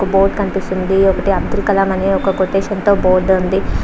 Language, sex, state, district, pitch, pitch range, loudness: Telugu, female, Andhra Pradesh, Visakhapatnam, 195 Hz, 190-195 Hz, -15 LUFS